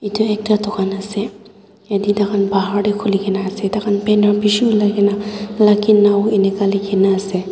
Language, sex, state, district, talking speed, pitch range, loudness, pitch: Nagamese, female, Nagaland, Dimapur, 175 wpm, 200-210 Hz, -16 LUFS, 205 Hz